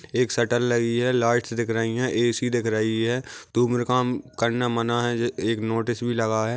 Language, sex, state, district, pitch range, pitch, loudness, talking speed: Hindi, male, Maharashtra, Aurangabad, 115-120 Hz, 120 Hz, -24 LUFS, 200 wpm